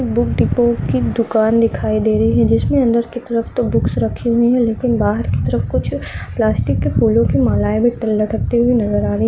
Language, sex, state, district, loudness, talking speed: Marwari, female, Rajasthan, Nagaur, -16 LUFS, 215 wpm